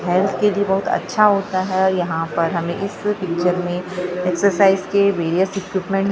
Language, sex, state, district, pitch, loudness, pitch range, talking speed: Hindi, female, Maharashtra, Gondia, 190 Hz, -19 LUFS, 180-195 Hz, 175 wpm